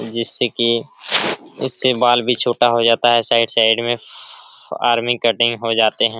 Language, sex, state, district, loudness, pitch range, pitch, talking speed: Hindi, male, Bihar, Araria, -16 LUFS, 115-120 Hz, 115 Hz, 165 wpm